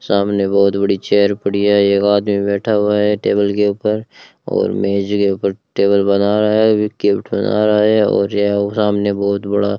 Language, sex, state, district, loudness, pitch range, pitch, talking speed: Hindi, male, Rajasthan, Bikaner, -15 LUFS, 100-105 Hz, 100 Hz, 200 wpm